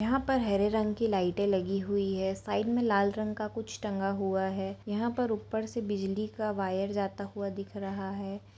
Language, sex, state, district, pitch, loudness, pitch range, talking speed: Hindi, female, Bihar, Saran, 200 Hz, -32 LUFS, 195-215 Hz, 210 wpm